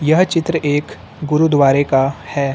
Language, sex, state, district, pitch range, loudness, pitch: Hindi, male, Uttar Pradesh, Lucknow, 135-160 Hz, -15 LUFS, 145 Hz